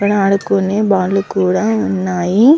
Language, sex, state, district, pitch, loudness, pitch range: Telugu, male, Andhra Pradesh, Visakhapatnam, 195 Hz, -15 LUFS, 185-205 Hz